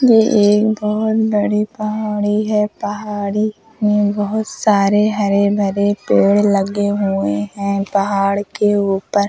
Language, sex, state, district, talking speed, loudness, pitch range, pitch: Hindi, female, Uttar Pradesh, Hamirpur, 130 wpm, -16 LUFS, 200-210 Hz, 205 Hz